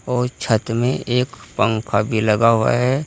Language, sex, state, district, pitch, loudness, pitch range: Hindi, male, Uttar Pradesh, Saharanpur, 115 Hz, -19 LUFS, 110-125 Hz